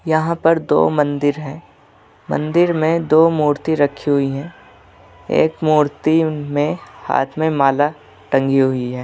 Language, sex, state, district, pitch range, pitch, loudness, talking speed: Hindi, male, Uttar Pradesh, Etah, 140-160 Hz, 150 Hz, -17 LUFS, 140 wpm